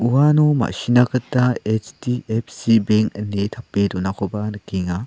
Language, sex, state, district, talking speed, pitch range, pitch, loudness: Garo, male, Meghalaya, South Garo Hills, 105 wpm, 105-125 Hz, 110 Hz, -20 LUFS